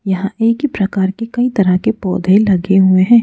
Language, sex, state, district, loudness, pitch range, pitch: Hindi, female, Madhya Pradesh, Bhopal, -14 LUFS, 190-230 Hz, 195 Hz